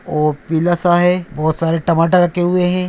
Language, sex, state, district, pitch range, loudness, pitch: Hindi, male, Bihar, Araria, 160-180 Hz, -15 LUFS, 175 Hz